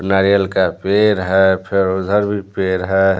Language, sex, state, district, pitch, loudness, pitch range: Hindi, male, Bihar, Patna, 95 Hz, -16 LUFS, 95-100 Hz